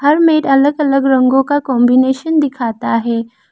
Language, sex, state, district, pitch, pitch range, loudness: Hindi, female, Arunachal Pradesh, Lower Dibang Valley, 270 Hz, 250-290 Hz, -13 LUFS